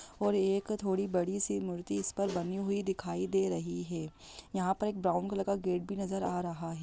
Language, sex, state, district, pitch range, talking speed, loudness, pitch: Hindi, female, Bihar, Sitamarhi, 175-195 Hz, 235 wpm, -34 LUFS, 190 Hz